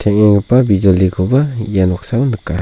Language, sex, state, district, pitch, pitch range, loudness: Garo, male, Meghalaya, South Garo Hills, 105 Hz, 95-125 Hz, -13 LUFS